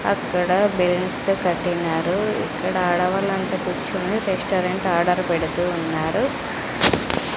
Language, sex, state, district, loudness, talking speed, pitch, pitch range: Telugu, female, Andhra Pradesh, Sri Satya Sai, -22 LUFS, 80 wpm, 180 Hz, 175-190 Hz